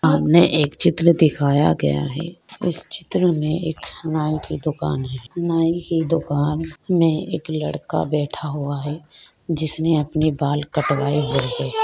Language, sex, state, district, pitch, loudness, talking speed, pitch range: Hindi, female, Maharashtra, Chandrapur, 155 Hz, -20 LUFS, 145 wpm, 145-165 Hz